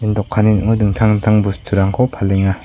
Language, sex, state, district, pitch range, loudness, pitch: Garo, male, Meghalaya, South Garo Hills, 100-110 Hz, -15 LUFS, 105 Hz